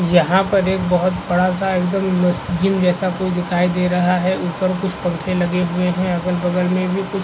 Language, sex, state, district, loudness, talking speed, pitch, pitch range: Hindi, female, Chhattisgarh, Korba, -18 LUFS, 190 wpm, 180 Hz, 180-185 Hz